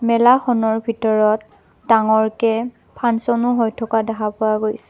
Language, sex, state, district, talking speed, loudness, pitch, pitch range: Assamese, female, Assam, Kamrup Metropolitan, 120 wpm, -18 LUFS, 225 Hz, 220-235 Hz